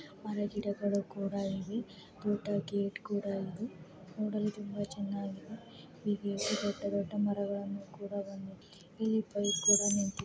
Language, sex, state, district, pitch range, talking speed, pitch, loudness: Kannada, female, Karnataka, Dakshina Kannada, 200-205 Hz, 135 wpm, 200 Hz, -34 LUFS